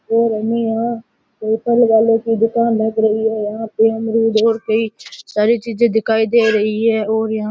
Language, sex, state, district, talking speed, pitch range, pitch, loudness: Rajasthani, male, Rajasthan, Churu, 190 wpm, 220-230 Hz, 225 Hz, -16 LUFS